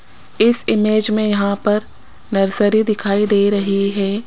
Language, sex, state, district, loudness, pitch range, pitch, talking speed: Hindi, female, Rajasthan, Jaipur, -16 LUFS, 200-215 Hz, 205 Hz, 140 wpm